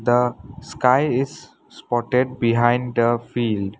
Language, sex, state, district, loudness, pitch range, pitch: English, male, Assam, Sonitpur, -20 LUFS, 120-130 Hz, 120 Hz